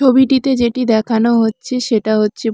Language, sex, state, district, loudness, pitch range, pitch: Bengali, female, West Bengal, Purulia, -14 LUFS, 220-260 Hz, 235 Hz